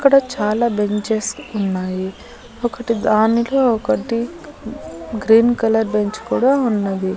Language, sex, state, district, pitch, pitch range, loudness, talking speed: Telugu, female, Andhra Pradesh, Annamaya, 225 Hz, 210-240 Hz, -18 LUFS, 100 wpm